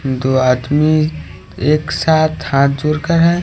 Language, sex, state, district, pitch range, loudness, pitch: Hindi, male, Haryana, Rohtak, 130-155 Hz, -15 LUFS, 150 Hz